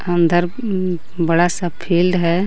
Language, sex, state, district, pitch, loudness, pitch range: Hindi, female, Jharkhand, Garhwa, 175 Hz, -18 LUFS, 170-180 Hz